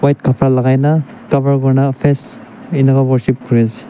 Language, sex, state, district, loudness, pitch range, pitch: Nagamese, male, Nagaland, Dimapur, -14 LUFS, 130-150 Hz, 135 Hz